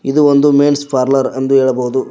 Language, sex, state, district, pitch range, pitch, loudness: Kannada, male, Karnataka, Koppal, 130-145 Hz, 135 Hz, -12 LUFS